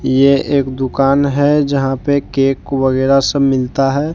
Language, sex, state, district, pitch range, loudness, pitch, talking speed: Hindi, male, Jharkhand, Deoghar, 135-140 Hz, -14 LUFS, 135 Hz, 160 wpm